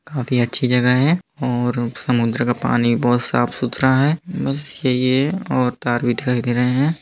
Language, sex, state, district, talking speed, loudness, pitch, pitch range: Hindi, male, Bihar, East Champaran, 180 wpm, -19 LUFS, 125 Hz, 120-135 Hz